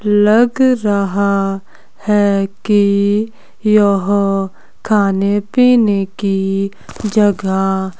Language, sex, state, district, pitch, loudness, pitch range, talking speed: Hindi, female, Himachal Pradesh, Shimla, 200 Hz, -14 LUFS, 195-210 Hz, 70 wpm